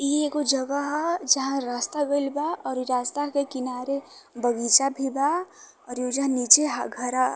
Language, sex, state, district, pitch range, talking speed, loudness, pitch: Bhojpuri, female, Uttar Pradesh, Varanasi, 255-290 Hz, 190 wpm, -24 LUFS, 275 Hz